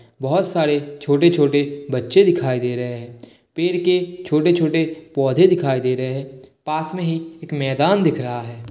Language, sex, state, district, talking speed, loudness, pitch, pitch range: Hindi, male, Bihar, Kishanganj, 165 wpm, -19 LUFS, 145 Hz, 130-170 Hz